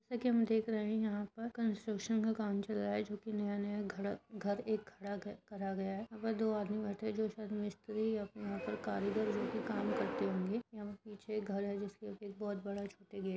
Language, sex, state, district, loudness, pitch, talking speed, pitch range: Hindi, female, Uttar Pradesh, Budaun, -39 LUFS, 210 Hz, 205 wpm, 200-220 Hz